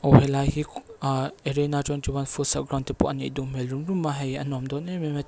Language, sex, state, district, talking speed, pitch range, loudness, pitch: Mizo, female, Mizoram, Aizawl, 285 wpm, 135-145 Hz, -26 LUFS, 140 Hz